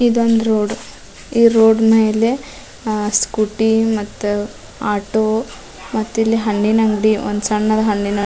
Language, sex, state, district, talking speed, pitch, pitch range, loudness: Kannada, female, Karnataka, Dharwad, 115 wpm, 220 Hz, 210-225 Hz, -16 LUFS